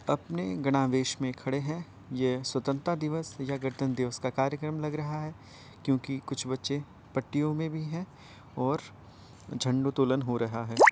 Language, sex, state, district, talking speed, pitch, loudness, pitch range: Hindi, male, Uttar Pradesh, Varanasi, 155 wpm, 135 Hz, -31 LUFS, 130-150 Hz